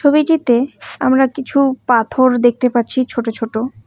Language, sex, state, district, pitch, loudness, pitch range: Bengali, female, West Bengal, Cooch Behar, 255 Hz, -15 LUFS, 235-270 Hz